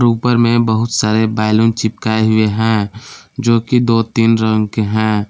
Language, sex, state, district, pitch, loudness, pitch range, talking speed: Hindi, male, Jharkhand, Palamu, 110 Hz, -14 LUFS, 110-115 Hz, 170 wpm